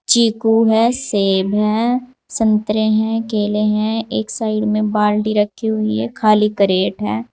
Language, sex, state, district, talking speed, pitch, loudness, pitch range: Hindi, female, Uttar Pradesh, Saharanpur, 150 wpm, 215 Hz, -16 LUFS, 210-225 Hz